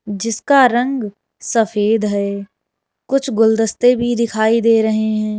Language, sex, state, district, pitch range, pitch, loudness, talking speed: Hindi, female, Uttar Pradesh, Lalitpur, 215-240 Hz, 225 Hz, -16 LUFS, 120 wpm